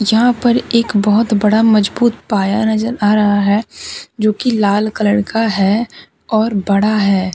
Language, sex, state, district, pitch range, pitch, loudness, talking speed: Hindi, female, Jharkhand, Deoghar, 205-225 Hz, 215 Hz, -14 LUFS, 155 wpm